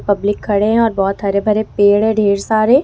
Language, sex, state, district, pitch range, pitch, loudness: Hindi, female, Jharkhand, Ranchi, 200-220 Hz, 205 Hz, -14 LUFS